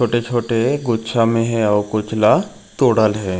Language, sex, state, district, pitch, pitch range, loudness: Chhattisgarhi, male, Chhattisgarh, Raigarh, 115 Hz, 105-115 Hz, -17 LUFS